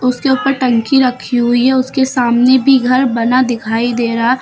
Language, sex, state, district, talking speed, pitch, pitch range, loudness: Hindi, female, Uttar Pradesh, Lucknow, 190 wpm, 255 Hz, 240-260 Hz, -13 LUFS